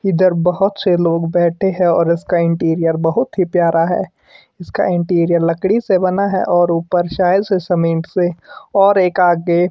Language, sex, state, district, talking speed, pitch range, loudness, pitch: Hindi, male, Himachal Pradesh, Shimla, 175 wpm, 170-190 Hz, -15 LUFS, 175 Hz